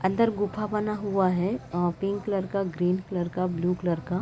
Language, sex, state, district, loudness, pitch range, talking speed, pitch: Hindi, female, Chhattisgarh, Raigarh, -27 LUFS, 180-200 Hz, 230 wpm, 185 Hz